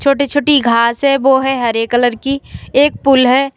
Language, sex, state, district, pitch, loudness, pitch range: Hindi, female, Uttar Pradesh, Lalitpur, 270 Hz, -13 LUFS, 245-275 Hz